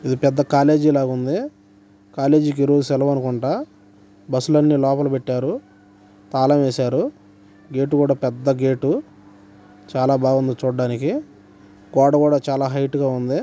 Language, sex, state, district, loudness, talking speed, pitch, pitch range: Telugu, male, Andhra Pradesh, Guntur, -19 LUFS, 125 wpm, 130 Hz, 100-140 Hz